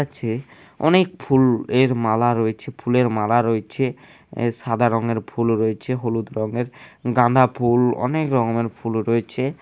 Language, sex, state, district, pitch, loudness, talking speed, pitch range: Bengali, male, West Bengal, Dakshin Dinajpur, 120 Hz, -20 LUFS, 135 wpm, 115-130 Hz